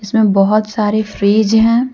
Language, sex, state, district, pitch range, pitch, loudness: Hindi, female, Jharkhand, Deoghar, 205-220 Hz, 215 Hz, -13 LUFS